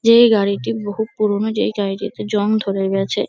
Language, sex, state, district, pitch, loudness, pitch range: Bengali, female, West Bengal, Kolkata, 210 Hz, -18 LUFS, 200-220 Hz